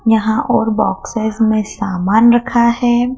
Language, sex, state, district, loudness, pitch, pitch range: Hindi, female, Madhya Pradesh, Dhar, -14 LUFS, 225 Hz, 220-240 Hz